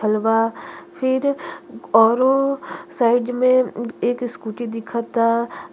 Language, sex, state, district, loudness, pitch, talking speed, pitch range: Bhojpuri, female, Uttar Pradesh, Deoria, -20 LUFS, 240 Hz, 95 wpm, 225-260 Hz